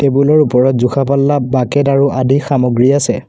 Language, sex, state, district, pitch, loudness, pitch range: Assamese, male, Assam, Kamrup Metropolitan, 140 Hz, -12 LUFS, 130-140 Hz